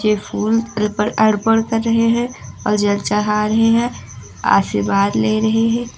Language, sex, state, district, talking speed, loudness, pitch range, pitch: Hindi, female, Uttar Pradesh, Lucknow, 160 wpm, -17 LUFS, 210-230 Hz, 220 Hz